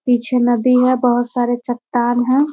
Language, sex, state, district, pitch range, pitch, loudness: Hindi, female, Bihar, Muzaffarpur, 240-255 Hz, 245 Hz, -16 LUFS